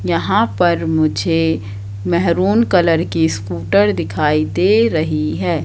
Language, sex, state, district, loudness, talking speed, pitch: Hindi, female, Madhya Pradesh, Katni, -16 LUFS, 115 wpm, 155 Hz